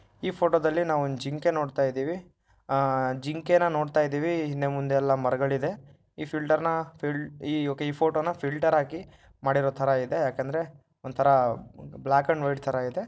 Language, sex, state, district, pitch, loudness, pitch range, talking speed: Kannada, male, Karnataka, Shimoga, 145 Hz, -27 LUFS, 135-160 Hz, 155 wpm